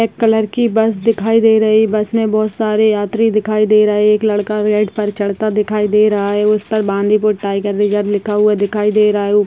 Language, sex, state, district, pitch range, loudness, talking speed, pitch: Hindi, female, Rajasthan, Churu, 205-220 Hz, -14 LUFS, 220 wpm, 210 Hz